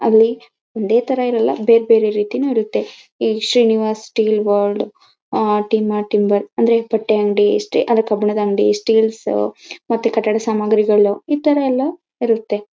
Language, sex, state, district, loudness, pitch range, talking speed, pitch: Kannada, female, Karnataka, Mysore, -17 LUFS, 210-235 Hz, 115 wpm, 220 Hz